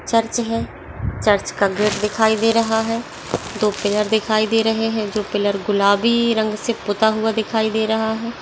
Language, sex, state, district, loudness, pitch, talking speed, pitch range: Hindi, female, Maharashtra, Aurangabad, -19 LUFS, 220 Hz, 185 wpm, 205-225 Hz